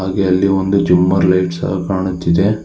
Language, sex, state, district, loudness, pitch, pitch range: Kannada, male, Karnataka, Bangalore, -15 LUFS, 95 Hz, 90-95 Hz